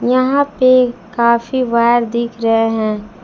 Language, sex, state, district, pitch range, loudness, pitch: Hindi, female, Jharkhand, Palamu, 225-255 Hz, -14 LUFS, 235 Hz